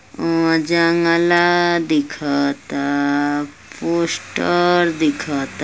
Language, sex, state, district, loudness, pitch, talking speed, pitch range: Bhojpuri, female, Uttar Pradesh, Ghazipur, -18 LUFS, 165 Hz, 55 wpm, 145-170 Hz